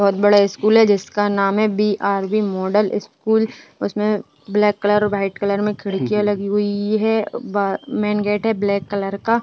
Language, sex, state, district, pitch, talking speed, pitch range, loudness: Hindi, female, Uttar Pradesh, Budaun, 205 Hz, 185 wpm, 200-210 Hz, -19 LUFS